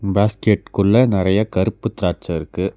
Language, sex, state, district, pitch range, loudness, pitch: Tamil, male, Tamil Nadu, Nilgiris, 95-105 Hz, -18 LUFS, 100 Hz